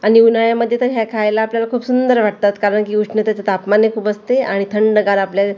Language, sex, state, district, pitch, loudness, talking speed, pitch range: Marathi, female, Maharashtra, Gondia, 215 Hz, -15 LUFS, 195 wpm, 205-230 Hz